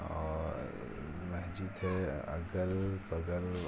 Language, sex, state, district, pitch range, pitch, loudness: Hindi, male, Jharkhand, Sahebganj, 80-95 Hz, 90 Hz, -38 LUFS